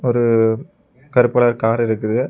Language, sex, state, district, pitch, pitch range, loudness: Tamil, male, Tamil Nadu, Kanyakumari, 120 Hz, 115-125 Hz, -17 LUFS